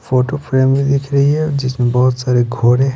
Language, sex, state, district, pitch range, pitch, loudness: Hindi, male, Bihar, Patna, 125-140 Hz, 130 Hz, -15 LUFS